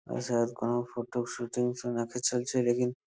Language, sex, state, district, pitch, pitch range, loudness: Bengali, male, West Bengal, Purulia, 120 Hz, 120-125 Hz, -31 LUFS